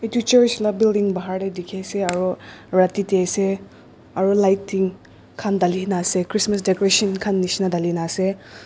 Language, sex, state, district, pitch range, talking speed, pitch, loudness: Nagamese, female, Nagaland, Dimapur, 185-200 Hz, 150 wpm, 195 Hz, -20 LUFS